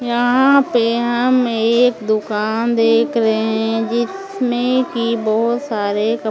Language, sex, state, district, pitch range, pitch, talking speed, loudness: Hindi, female, Maharashtra, Mumbai Suburban, 220-245 Hz, 230 Hz, 135 wpm, -16 LUFS